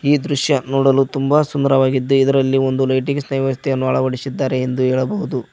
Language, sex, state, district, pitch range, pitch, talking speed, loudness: Kannada, male, Karnataka, Koppal, 130-140 Hz, 135 Hz, 140 wpm, -17 LUFS